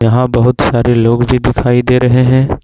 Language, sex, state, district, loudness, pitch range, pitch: Hindi, male, Jharkhand, Ranchi, -11 LUFS, 120-125 Hz, 125 Hz